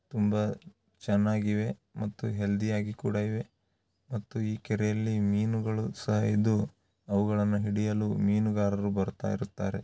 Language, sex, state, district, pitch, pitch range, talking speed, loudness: Kannada, male, Karnataka, Raichur, 105 Hz, 100-110 Hz, 110 wpm, -30 LUFS